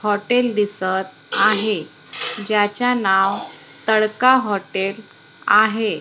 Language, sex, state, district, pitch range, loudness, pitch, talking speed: Marathi, female, Maharashtra, Gondia, 195-220 Hz, -18 LUFS, 210 Hz, 80 wpm